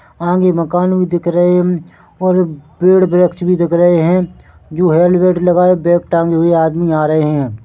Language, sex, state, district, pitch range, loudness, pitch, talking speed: Hindi, male, Chhattisgarh, Bilaspur, 165-180 Hz, -13 LUFS, 175 Hz, 180 wpm